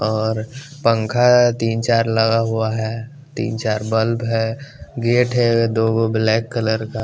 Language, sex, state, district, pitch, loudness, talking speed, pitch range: Hindi, male, Bihar, West Champaran, 115 Hz, -18 LUFS, 145 wpm, 110-120 Hz